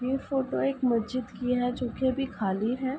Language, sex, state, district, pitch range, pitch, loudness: Hindi, female, Uttar Pradesh, Ghazipur, 240-265 Hz, 250 Hz, -29 LUFS